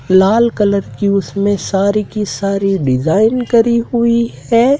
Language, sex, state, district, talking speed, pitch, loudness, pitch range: Hindi, male, Madhya Pradesh, Dhar, 135 wpm, 205 Hz, -14 LUFS, 195-235 Hz